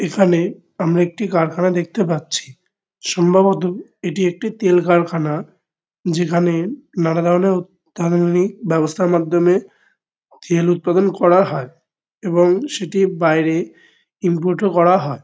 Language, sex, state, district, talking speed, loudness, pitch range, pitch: Bengali, male, West Bengal, Kolkata, 105 wpm, -17 LUFS, 170-190 Hz, 175 Hz